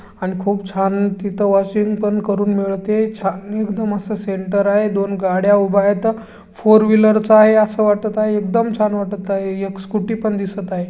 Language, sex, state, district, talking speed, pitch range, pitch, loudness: Marathi, female, Maharashtra, Chandrapur, 170 wpm, 195-215 Hz, 205 Hz, -17 LUFS